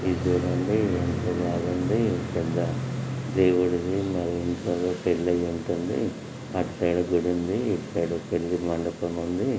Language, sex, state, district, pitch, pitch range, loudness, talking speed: Telugu, male, Telangana, Nalgonda, 90 Hz, 85-105 Hz, -26 LUFS, 50 wpm